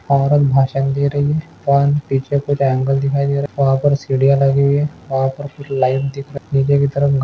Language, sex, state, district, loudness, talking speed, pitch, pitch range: Hindi, male, Chhattisgarh, Jashpur, -16 LUFS, 230 wpm, 140 Hz, 135-140 Hz